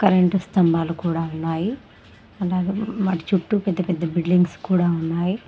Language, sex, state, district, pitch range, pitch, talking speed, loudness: Telugu, female, Telangana, Mahabubabad, 170-190 Hz, 180 Hz, 130 wpm, -22 LUFS